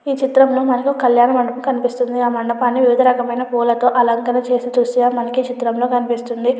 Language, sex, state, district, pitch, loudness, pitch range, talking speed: Telugu, female, Andhra Pradesh, Chittoor, 245 Hz, -16 LUFS, 240-250 Hz, 175 wpm